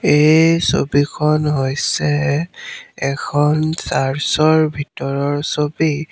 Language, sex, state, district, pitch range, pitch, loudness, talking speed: Assamese, male, Assam, Sonitpur, 145-155 Hz, 150 Hz, -17 LUFS, 70 wpm